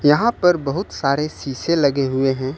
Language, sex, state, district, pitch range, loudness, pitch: Hindi, male, Uttar Pradesh, Lucknow, 135-170 Hz, -19 LUFS, 145 Hz